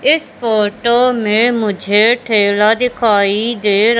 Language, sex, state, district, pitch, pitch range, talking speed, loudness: Hindi, female, Madhya Pradesh, Katni, 220 Hz, 210-240 Hz, 105 wpm, -13 LUFS